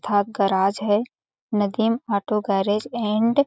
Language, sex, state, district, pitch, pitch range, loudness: Hindi, female, Chhattisgarh, Balrampur, 210 Hz, 200-225 Hz, -22 LUFS